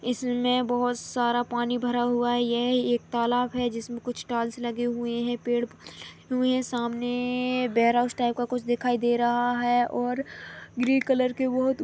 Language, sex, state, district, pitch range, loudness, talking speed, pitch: Hindi, female, Chhattisgarh, Rajnandgaon, 240-250 Hz, -26 LUFS, 185 wpm, 245 Hz